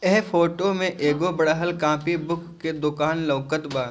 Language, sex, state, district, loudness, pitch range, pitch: Bhojpuri, male, Bihar, Gopalganj, -23 LUFS, 150-175 Hz, 160 Hz